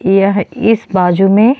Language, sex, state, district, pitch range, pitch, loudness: Bhojpuri, female, Uttar Pradesh, Deoria, 195-225 Hz, 195 Hz, -12 LUFS